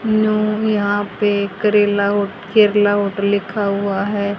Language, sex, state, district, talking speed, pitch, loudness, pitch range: Hindi, female, Haryana, Rohtak, 110 wpm, 205 Hz, -17 LUFS, 200-210 Hz